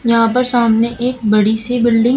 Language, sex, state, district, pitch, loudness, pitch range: Hindi, female, Uttar Pradesh, Shamli, 235 Hz, -13 LUFS, 225-245 Hz